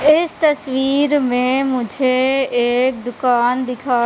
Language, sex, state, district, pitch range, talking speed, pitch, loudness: Hindi, female, Madhya Pradesh, Katni, 245-275 Hz, 105 wpm, 255 Hz, -16 LUFS